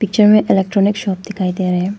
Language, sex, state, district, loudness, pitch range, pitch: Hindi, female, Arunachal Pradesh, Papum Pare, -15 LUFS, 185-210 Hz, 200 Hz